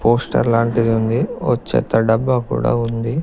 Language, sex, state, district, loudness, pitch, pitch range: Telugu, male, Telangana, Mahabubabad, -17 LUFS, 115 Hz, 115-125 Hz